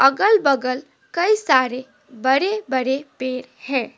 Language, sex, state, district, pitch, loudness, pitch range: Hindi, female, West Bengal, Alipurduar, 265 Hz, -20 LUFS, 255-300 Hz